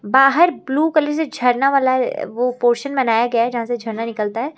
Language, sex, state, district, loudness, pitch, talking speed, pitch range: Hindi, female, Uttar Pradesh, Lucknow, -18 LUFS, 250 Hz, 210 wpm, 235-275 Hz